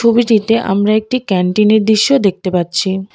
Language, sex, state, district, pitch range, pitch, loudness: Bengali, female, West Bengal, Alipurduar, 190-225 Hz, 215 Hz, -13 LUFS